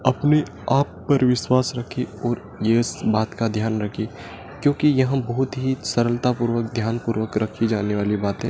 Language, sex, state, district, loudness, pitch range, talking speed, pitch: Hindi, male, Madhya Pradesh, Dhar, -22 LUFS, 110-130 Hz, 160 wpm, 120 Hz